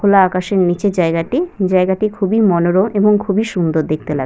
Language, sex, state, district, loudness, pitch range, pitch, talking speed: Bengali, female, West Bengal, Purulia, -15 LUFS, 175-205 Hz, 190 Hz, 170 wpm